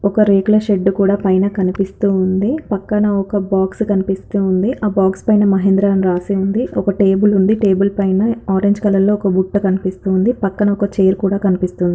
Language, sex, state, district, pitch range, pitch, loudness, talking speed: Telugu, female, Andhra Pradesh, Srikakulam, 190-205 Hz, 195 Hz, -15 LUFS, 185 wpm